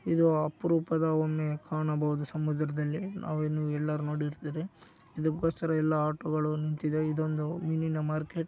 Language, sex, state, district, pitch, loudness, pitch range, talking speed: Kannada, male, Karnataka, Raichur, 155 Hz, -31 LUFS, 150-160 Hz, 115 wpm